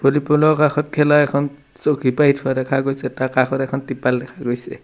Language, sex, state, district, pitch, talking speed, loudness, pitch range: Assamese, male, Assam, Sonitpur, 135 Hz, 185 wpm, -18 LUFS, 130-150 Hz